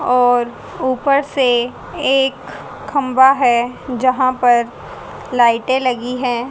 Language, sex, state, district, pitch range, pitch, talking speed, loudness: Hindi, female, Haryana, Charkhi Dadri, 245-260 Hz, 250 Hz, 100 wpm, -16 LUFS